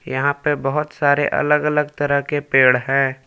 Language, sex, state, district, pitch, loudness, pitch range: Hindi, male, Jharkhand, Palamu, 145 Hz, -18 LUFS, 135-150 Hz